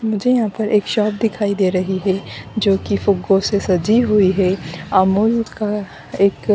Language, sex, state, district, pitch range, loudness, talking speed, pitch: Hindi, female, Jharkhand, Jamtara, 190-215 Hz, -17 LUFS, 175 wpm, 200 Hz